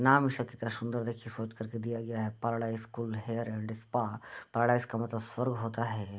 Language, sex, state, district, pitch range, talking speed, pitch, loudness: Hindi, male, Bihar, Bhagalpur, 110-120 Hz, 195 wpm, 115 Hz, -34 LUFS